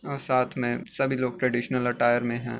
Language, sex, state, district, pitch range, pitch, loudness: Hindi, male, Uttar Pradesh, Etah, 120-130 Hz, 125 Hz, -26 LUFS